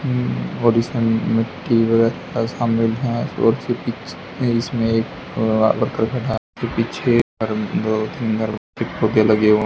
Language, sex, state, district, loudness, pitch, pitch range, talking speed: Hindi, male, Haryana, Charkhi Dadri, -20 LUFS, 115 Hz, 110-115 Hz, 135 wpm